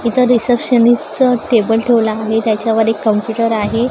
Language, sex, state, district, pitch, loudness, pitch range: Marathi, female, Maharashtra, Gondia, 230 Hz, -14 LUFS, 220-245 Hz